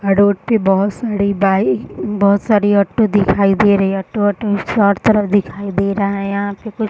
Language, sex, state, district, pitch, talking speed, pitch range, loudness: Hindi, female, Bihar, Darbhanga, 200 Hz, 210 wpm, 200-205 Hz, -15 LUFS